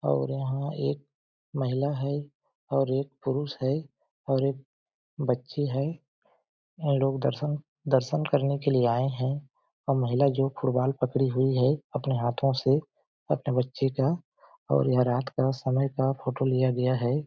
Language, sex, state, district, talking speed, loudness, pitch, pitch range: Hindi, male, Chhattisgarh, Balrampur, 160 wpm, -28 LUFS, 135 Hz, 130-140 Hz